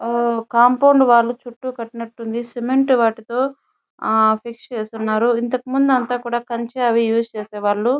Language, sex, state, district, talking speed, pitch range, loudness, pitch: Telugu, female, Andhra Pradesh, Chittoor, 135 wpm, 230-250 Hz, -18 LUFS, 235 Hz